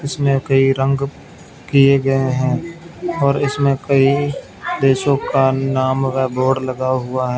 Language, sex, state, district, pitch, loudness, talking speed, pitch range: Hindi, male, Punjab, Fazilka, 135 Hz, -17 LUFS, 130 wpm, 130-140 Hz